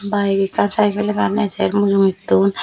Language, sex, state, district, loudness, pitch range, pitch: Chakma, female, Tripura, Dhalai, -17 LUFS, 190-205 Hz, 195 Hz